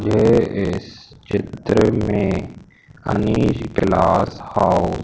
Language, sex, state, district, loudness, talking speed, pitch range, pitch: Hindi, male, Madhya Pradesh, Umaria, -18 LUFS, 95 wpm, 105-110 Hz, 105 Hz